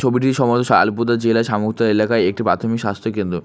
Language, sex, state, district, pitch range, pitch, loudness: Bengali, male, West Bengal, Alipurduar, 105-120 Hz, 115 Hz, -17 LUFS